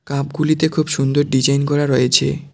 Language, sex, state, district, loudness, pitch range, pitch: Bengali, male, West Bengal, Cooch Behar, -17 LUFS, 135-155 Hz, 145 Hz